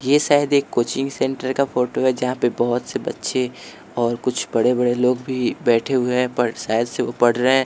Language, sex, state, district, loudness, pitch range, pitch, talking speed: Hindi, male, Bihar, West Champaran, -20 LUFS, 120-130 Hz, 125 Hz, 225 wpm